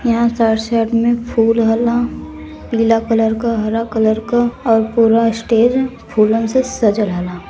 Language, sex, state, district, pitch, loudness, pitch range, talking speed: Hindi, female, Uttar Pradesh, Varanasi, 230 Hz, -15 LUFS, 220-235 Hz, 150 wpm